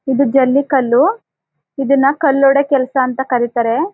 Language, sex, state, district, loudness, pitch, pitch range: Kannada, female, Karnataka, Chamarajanagar, -14 LUFS, 275 Hz, 260-280 Hz